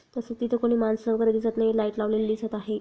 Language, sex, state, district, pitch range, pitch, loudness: Marathi, female, Maharashtra, Chandrapur, 215-235 Hz, 225 Hz, -26 LUFS